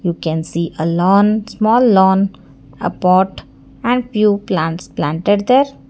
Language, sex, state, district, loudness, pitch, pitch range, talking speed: English, female, Karnataka, Bangalore, -15 LUFS, 190 Hz, 170-215 Hz, 140 wpm